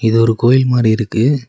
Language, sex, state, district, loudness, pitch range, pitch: Tamil, male, Tamil Nadu, Nilgiris, -13 LUFS, 115-125 Hz, 115 Hz